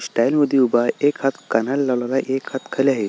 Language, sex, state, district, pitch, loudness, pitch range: Marathi, male, Maharashtra, Solapur, 135 Hz, -20 LUFS, 125-140 Hz